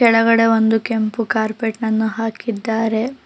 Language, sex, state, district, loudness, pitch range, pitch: Kannada, female, Karnataka, Bangalore, -18 LUFS, 220-230 Hz, 225 Hz